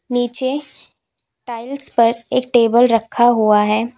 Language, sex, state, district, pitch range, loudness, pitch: Hindi, female, Uttar Pradesh, Lalitpur, 230-250 Hz, -16 LUFS, 240 Hz